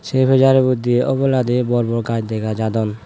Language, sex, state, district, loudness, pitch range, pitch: Chakma, male, Tripura, West Tripura, -17 LUFS, 110-130 Hz, 120 Hz